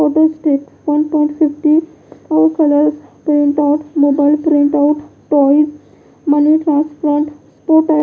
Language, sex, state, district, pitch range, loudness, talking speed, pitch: Hindi, female, Punjab, Pathankot, 290-310 Hz, -14 LUFS, 110 wpm, 300 Hz